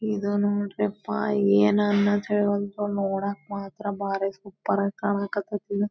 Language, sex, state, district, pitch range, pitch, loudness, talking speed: Kannada, female, Karnataka, Belgaum, 200-205 Hz, 205 Hz, -25 LUFS, 80 wpm